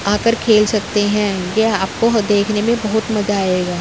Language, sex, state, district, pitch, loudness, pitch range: Hindi, female, Uttar Pradesh, Jyotiba Phule Nagar, 210 Hz, -16 LUFS, 200-220 Hz